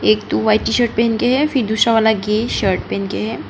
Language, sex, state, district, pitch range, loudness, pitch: Hindi, female, Arunachal Pradesh, Papum Pare, 210-235 Hz, -16 LUFS, 220 Hz